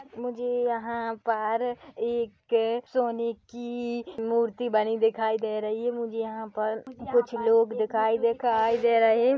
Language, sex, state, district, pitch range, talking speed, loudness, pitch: Hindi, female, Chhattisgarh, Korba, 225-240 Hz, 135 wpm, -27 LUFS, 230 Hz